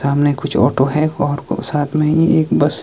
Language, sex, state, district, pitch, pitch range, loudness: Hindi, male, Himachal Pradesh, Shimla, 145 Hz, 140-150 Hz, -16 LUFS